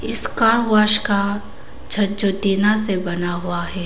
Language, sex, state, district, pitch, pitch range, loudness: Hindi, female, Arunachal Pradesh, Papum Pare, 200 Hz, 180-210 Hz, -17 LUFS